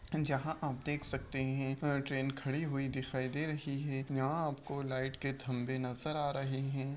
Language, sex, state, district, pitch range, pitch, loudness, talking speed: Hindi, male, Uttar Pradesh, Budaun, 135-145 Hz, 135 Hz, -37 LUFS, 190 wpm